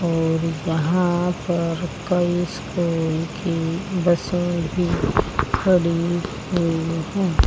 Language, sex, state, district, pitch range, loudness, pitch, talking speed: Hindi, female, Haryana, Jhajjar, 165-175 Hz, -22 LUFS, 170 Hz, 90 wpm